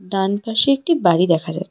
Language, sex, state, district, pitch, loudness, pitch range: Bengali, female, West Bengal, Darjeeling, 190 Hz, -17 LUFS, 175-225 Hz